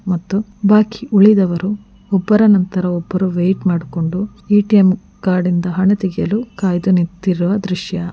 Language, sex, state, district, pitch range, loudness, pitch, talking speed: Kannada, female, Karnataka, Mysore, 180-205 Hz, -15 LUFS, 190 Hz, 125 wpm